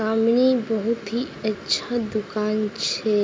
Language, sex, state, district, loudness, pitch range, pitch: Maithili, female, Bihar, Begusarai, -23 LUFS, 215-235 Hz, 220 Hz